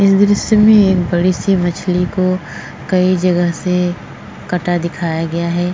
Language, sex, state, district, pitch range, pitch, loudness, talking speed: Hindi, female, Uttar Pradesh, Jyotiba Phule Nagar, 175-185 Hz, 180 Hz, -15 LUFS, 155 wpm